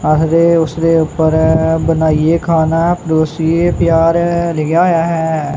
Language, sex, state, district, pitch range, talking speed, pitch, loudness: Punjabi, male, Punjab, Kapurthala, 160-170 Hz, 110 wpm, 165 Hz, -13 LUFS